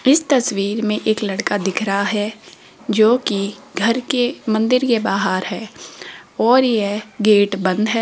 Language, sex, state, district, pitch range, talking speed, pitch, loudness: Hindi, female, Rajasthan, Jaipur, 200-235 Hz, 155 wpm, 215 Hz, -18 LUFS